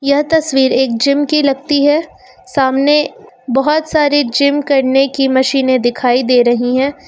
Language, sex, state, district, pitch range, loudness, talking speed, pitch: Hindi, female, Uttar Pradesh, Lucknow, 260-290 Hz, -13 LUFS, 155 wpm, 275 Hz